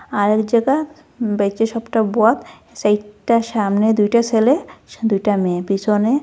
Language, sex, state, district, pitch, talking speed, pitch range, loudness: Bengali, female, Assam, Hailakandi, 220 Hz, 105 wpm, 205-235 Hz, -18 LUFS